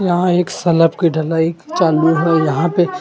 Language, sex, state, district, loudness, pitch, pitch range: Hindi, male, Maharashtra, Gondia, -15 LUFS, 170 Hz, 165-175 Hz